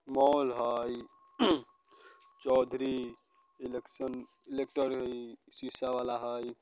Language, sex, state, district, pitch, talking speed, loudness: Bajjika, male, Bihar, Vaishali, 130 Hz, 70 wpm, -32 LUFS